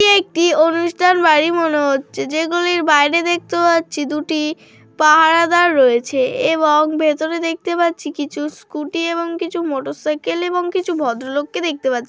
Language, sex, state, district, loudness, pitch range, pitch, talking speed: Bengali, female, West Bengal, Malda, -16 LUFS, 295-345 Hz, 320 Hz, 140 wpm